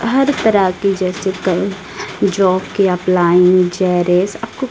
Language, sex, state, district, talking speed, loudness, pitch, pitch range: Hindi, female, Odisha, Malkangiri, 115 wpm, -15 LUFS, 190 Hz, 180-200 Hz